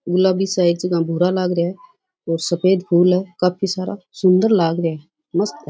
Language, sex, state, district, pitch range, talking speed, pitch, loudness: Rajasthani, female, Rajasthan, Churu, 170-190 Hz, 190 wpm, 180 Hz, -18 LUFS